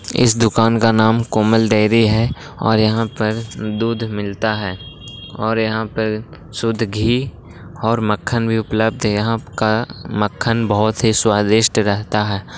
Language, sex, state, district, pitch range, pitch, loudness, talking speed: Hindi, male, Bihar, Gaya, 105-115 Hz, 110 Hz, -17 LUFS, 150 wpm